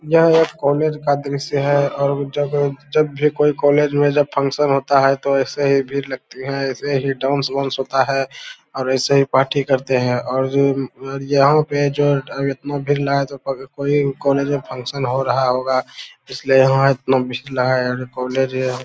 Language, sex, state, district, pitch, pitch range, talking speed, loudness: Hindi, male, Bihar, Lakhisarai, 140 Hz, 135-145 Hz, 170 wpm, -18 LUFS